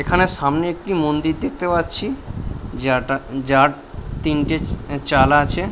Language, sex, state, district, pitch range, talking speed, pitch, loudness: Bengali, male, West Bengal, Paschim Medinipur, 135-160 Hz, 125 wpm, 145 Hz, -19 LUFS